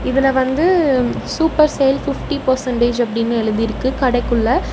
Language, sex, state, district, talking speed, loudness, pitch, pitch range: Tamil, female, Tamil Nadu, Namakkal, 115 wpm, -17 LUFS, 260 Hz, 240-275 Hz